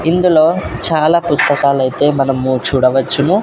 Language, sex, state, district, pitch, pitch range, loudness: Telugu, male, Andhra Pradesh, Sri Satya Sai, 145 Hz, 135-160 Hz, -13 LUFS